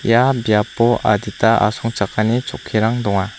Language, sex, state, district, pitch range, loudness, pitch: Garo, female, Meghalaya, South Garo Hills, 105-120 Hz, -17 LUFS, 110 Hz